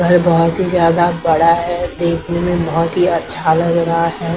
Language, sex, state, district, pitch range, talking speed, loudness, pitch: Hindi, female, Maharashtra, Mumbai Suburban, 165-175 Hz, 190 wpm, -15 LUFS, 170 Hz